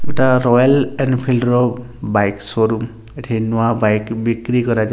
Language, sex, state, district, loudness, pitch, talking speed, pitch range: Odia, male, Odisha, Nuapada, -16 LUFS, 120 Hz, 145 wpm, 110-125 Hz